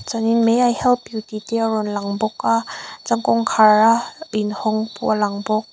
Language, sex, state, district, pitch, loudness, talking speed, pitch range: Mizo, female, Mizoram, Aizawl, 215 Hz, -19 LUFS, 210 wpm, 210-230 Hz